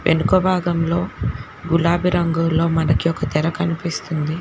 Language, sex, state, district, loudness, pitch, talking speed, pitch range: Telugu, female, Telangana, Hyderabad, -19 LUFS, 165 Hz, 110 wpm, 160-175 Hz